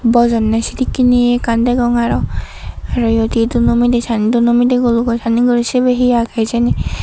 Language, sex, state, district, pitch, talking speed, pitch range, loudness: Chakma, female, Tripura, Dhalai, 235 Hz, 170 wpm, 230-245 Hz, -14 LUFS